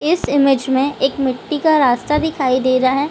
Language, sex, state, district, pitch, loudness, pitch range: Hindi, female, Bihar, Gaya, 275 Hz, -16 LUFS, 260-300 Hz